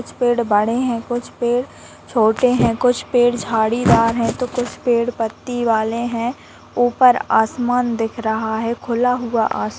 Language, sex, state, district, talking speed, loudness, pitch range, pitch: Hindi, female, Bihar, Muzaffarpur, 160 wpm, -18 LUFS, 225-245 Hz, 235 Hz